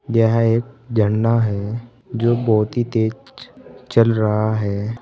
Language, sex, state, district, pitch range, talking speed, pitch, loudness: Hindi, male, Uttar Pradesh, Saharanpur, 110-120 Hz, 130 wpm, 115 Hz, -19 LUFS